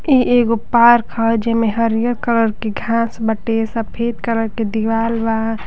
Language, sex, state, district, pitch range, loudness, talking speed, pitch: Bhojpuri, female, Uttar Pradesh, Deoria, 225-235 Hz, -17 LUFS, 160 wpm, 230 Hz